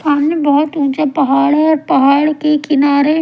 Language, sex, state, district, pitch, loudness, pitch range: Hindi, female, Himachal Pradesh, Shimla, 295 Hz, -13 LUFS, 285-305 Hz